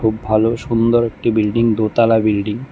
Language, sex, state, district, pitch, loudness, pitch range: Bengali, male, Tripura, West Tripura, 115 Hz, -16 LUFS, 110-115 Hz